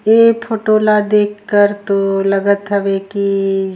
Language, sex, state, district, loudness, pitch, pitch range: Surgujia, female, Chhattisgarh, Sarguja, -14 LUFS, 205 Hz, 195-215 Hz